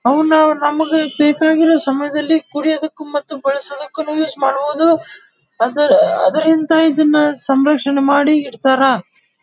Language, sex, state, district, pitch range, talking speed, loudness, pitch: Kannada, male, Karnataka, Dharwad, 280-315 Hz, 95 wpm, -15 LUFS, 295 Hz